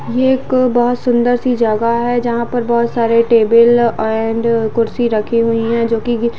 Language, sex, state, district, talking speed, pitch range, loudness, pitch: Hindi, female, Jharkhand, Sahebganj, 190 wpm, 230-240 Hz, -14 LUFS, 235 Hz